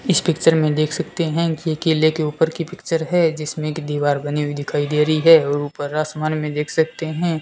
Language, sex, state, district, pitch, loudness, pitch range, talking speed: Hindi, male, Rajasthan, Bikaner, 155 Hz, -19 LUFS, 150-165 Hz, 245 wpm